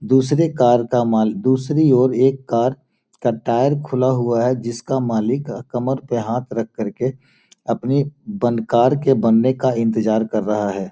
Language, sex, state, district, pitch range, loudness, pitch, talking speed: Hindi, male, Bihar, Gopalganj, 115-130 Hz, -18 LUFS, 125 Hz, 165 wpm